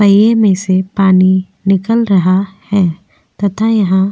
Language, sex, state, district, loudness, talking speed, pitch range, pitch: Hindi, female, Goa, North and South Goa, -12 LUFS, 160 wpm, 185-205 Hz, 195 Hz